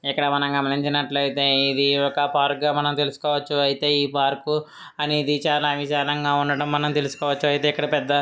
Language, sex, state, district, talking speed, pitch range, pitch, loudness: Telugu, male, Andhra Pradesh, Srikakulam, 160 wpm, 140-145 Hz, 145 Hz, -21 LUFS